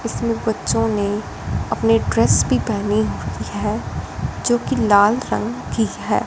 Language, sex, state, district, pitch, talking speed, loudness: Hindi, female, Punjab, Fazilka, 205 Hz, 135 wpm, -19 LUFS